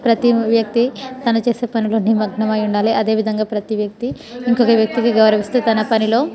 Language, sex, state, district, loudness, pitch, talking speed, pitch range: Telugu, female, Telangana, Nalgonda, -17 LUFS, 225 Hz, 170 wpm, 215-240 Hz